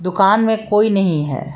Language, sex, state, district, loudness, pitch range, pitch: Hindi, female, Jharkhand, Palamu, -15 LUFS, 165-210 Hz, 195 Hz